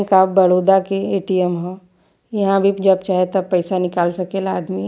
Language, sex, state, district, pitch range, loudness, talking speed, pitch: Bhojpuri, female, Uttar Pradesh, Varanasi, 180-195 Hz, -17 LUFS, 185 wpm, 190 Hz